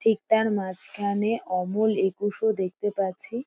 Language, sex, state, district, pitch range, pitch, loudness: Bengali, female, West Bengal, Dakshin Dinajpur, 190-220 Hz, 205 Hz, -26 LUFS